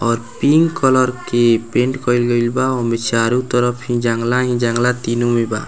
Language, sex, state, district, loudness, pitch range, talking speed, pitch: Bhojpuri, male, Bihar, Muzaffarpur, -16 LUFS, 115-125 Hz, 190 wpm, 120 Hz